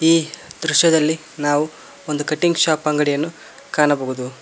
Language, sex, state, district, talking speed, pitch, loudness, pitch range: Kannada, male, Karnataka, Koppal, 110 wpm, 155 Hz, -19 LUFS, 145-160 Hz